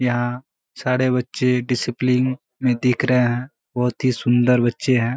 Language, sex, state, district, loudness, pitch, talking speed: Hindi, male, Bihar, Kishanganj, -20 LUFS, 125 Hz, 150 wpm